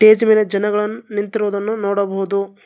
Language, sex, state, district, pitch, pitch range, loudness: Kannada, male, Karnataka, Bangalore, 210 Hz, 200-215 Hz, -18 LUFS